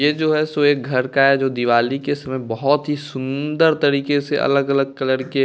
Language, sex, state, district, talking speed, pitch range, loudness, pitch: Hindi, male, Bihar, West Champaran, 220 wpm, 130-145 Hz, -18 LUFS, 140 Hz